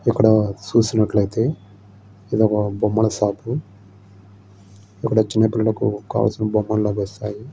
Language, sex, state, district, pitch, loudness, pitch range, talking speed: Telugu, male, Andhra Pradesh, Srikakulam, 105 Hz, -20 LUFS, 100-110 Hz, 95 wpm